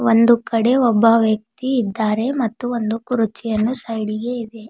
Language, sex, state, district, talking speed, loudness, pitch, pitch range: Kannada, female, Karnataka, Bidar, 130 wpm, -18 LUFS, 230 Hz, 220-240 Hz